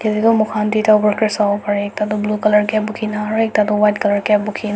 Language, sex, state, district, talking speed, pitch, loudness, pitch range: Nagamese, male, Nagaland, Dimapur, 225 wpm, 210 Hz, -16 LUFS, 210-215 Hz